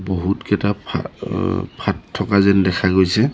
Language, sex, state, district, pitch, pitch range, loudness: Assamese, male, Assam, Sonitpur, 100 Hz, 95-105 Hz, -19 LUFS